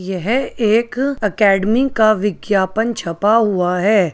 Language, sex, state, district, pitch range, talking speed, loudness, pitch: Hindi, male, Uttar Pradesh, Ghazipur, 195-230 Hz, 115 wpm, -16 LUFS, 210 Hz